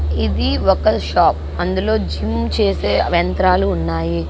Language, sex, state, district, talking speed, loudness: Telugu, female, Andhra Pradesh, Guntur, 140 wpm, -17 LUFS